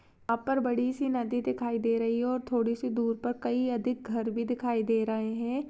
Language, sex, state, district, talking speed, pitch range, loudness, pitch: Hindi, female, Maharashtra, Chandrapur, 230 wpm, 230-250 Hz, -30 LUFS, 240 Hz